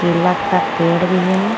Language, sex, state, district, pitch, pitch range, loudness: Hindi, female, Jharkhand, Garhwa, 180 Hz, 170-185 Hz, -16 LUFS